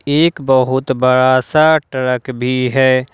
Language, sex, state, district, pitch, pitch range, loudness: Hindi, male, Jharkhand, Ranchi, 130 Hz, 130-140 Hz, -14 LUFS